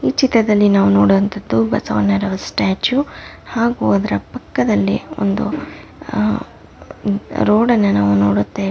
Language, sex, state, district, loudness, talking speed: Kannada, female, Karnataka, Mysore, -16 LUFS, 115 wpm